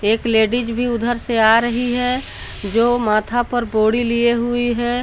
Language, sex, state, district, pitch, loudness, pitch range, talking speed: Hindi, female, Jharkhand, Garhwa, 235 Hz, -18 LUFS, 225-240 Hz, 180 wpm